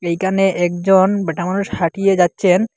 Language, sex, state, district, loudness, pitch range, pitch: Bengali, male, Assam, Hailakandi, -16 LUFS, 175-195 Hz, 190 Hz